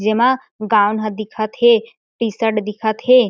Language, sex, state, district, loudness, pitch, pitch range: Chhattisgarhi, female, Chhattisgarh, Jashpur, -17 LUFS, 220 Hz, 215-235 Hz